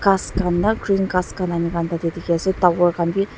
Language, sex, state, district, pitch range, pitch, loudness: Nagamese, female, Nagaland, Dimapur, 170-195 Hz, 180 Hz, -20 LUFS